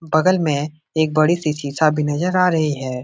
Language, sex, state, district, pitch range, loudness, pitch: Hindi, male, Bihar, Jahanabad, 150-160 Hz, -18 LUFS, 155 Hz